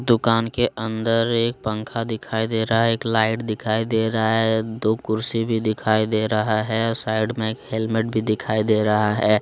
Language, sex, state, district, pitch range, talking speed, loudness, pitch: Hindi, male, Jharkhand, Deoghar, 110-115 Hz, 195 wpm, -21 LUFS, 110 Hz